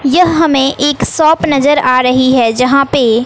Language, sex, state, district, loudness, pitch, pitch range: Hindi, female, Bihar, West Champaran, -10 LUFS, 275 Hz, 255-295 Hz